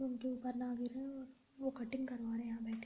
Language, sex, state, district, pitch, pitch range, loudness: Hindi, female, Uttar Pradesh, Deoria, 250 Hz, 235-260 Hz, -43 LUFS